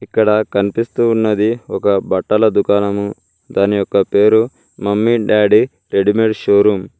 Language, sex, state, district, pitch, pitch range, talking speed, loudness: Telugu, male, Telangana, Mahabubabad, 105 Hz, 100-110 Hz, 130 wpm, -15 LUFS